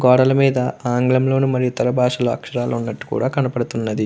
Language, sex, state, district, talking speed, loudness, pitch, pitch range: Telugu, male, Andhra Pradesh, Krishna, 150 wpm, -19 LUFS, 125 Hz, 120-130 Hz